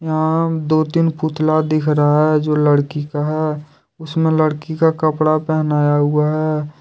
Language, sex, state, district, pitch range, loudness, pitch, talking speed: Hindi, male, Jharkhand, Deoghar, 150-155 Hz, -17 LUFS, 155 Hz, 160 wpm